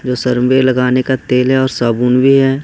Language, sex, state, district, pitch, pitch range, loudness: Hindi, male, Bihar, Katihar, 130 Hz, 125-130 Hz, -12 LUFS